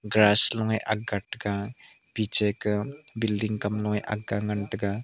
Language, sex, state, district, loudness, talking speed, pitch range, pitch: Wancho, male, Arunachal Pradesh, Longding, -23 LUFS, 145 wpm, 105-110 Hz, 105 Hz